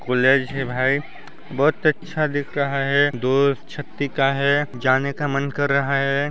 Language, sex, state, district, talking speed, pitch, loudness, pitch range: Hindi, male, Chhattisgarh, Sarguja, 150 wpm, 140 Hz, -21 LUFS, 135-145 Hz